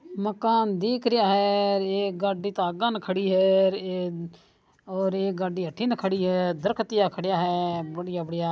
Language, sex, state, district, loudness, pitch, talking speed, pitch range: Marwari, male, Rajasthan, Nagaur, -25 LUFS, 190 Hz, 155 wpm, 180-200 Hz